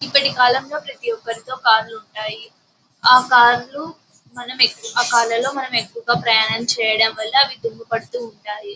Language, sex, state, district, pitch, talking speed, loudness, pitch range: Telugu, female, Andhra Pradesh, Anantapur, 235 Hz, 105 wpm, -17 LUFS, 225-260 Hz